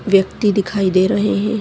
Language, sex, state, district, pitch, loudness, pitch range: Hindi, female, Chhattisgarh, Kabirdham, 200 Hz, -16 LUFS, 190-210 Hz